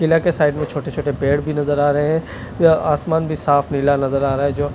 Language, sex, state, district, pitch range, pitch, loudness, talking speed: Hindi, male, Delhi, New Delhi, 145-155 Hz, 145 Hz, -18 LUFS, 250 wpm